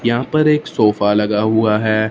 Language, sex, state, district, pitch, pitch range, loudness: Hindi, male, Punjab, Fazilka, 110 Hz, 105-120 Hz, -15 LUFS